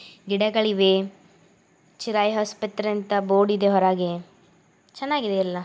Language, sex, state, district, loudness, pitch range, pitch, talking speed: Kannada, female, Karnataka, Gulbarga, -22 LUFS, 185-210 Hz, 195 Hz, 105 wpm